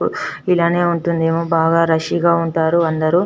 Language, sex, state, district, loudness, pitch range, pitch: Telugu, female, Telangana, Nalgonda, -16 LUFS, 165-170 Hz, 165 Hz